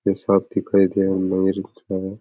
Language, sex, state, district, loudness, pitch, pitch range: Rajasthani, male, Rajasthan, Nagaur, -21 LUFS, 95 Hz, 95-100 Hz